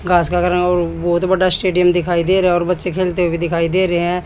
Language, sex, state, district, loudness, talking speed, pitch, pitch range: Hindi, female, Haryana, Jhajjar, -16 LUFS, 255 wpm, 180 Hz, 175-180 Hz